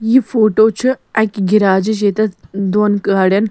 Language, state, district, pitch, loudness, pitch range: Kashmiri, Punjab, Kapurthala, 210 Hz, -14 LUFS, 200-220 Hz